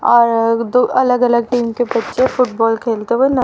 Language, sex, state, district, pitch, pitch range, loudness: Hindi, female, Haryana, Charkhi Dadri, 240 Hz, 230-250 Hz, -15 LUFS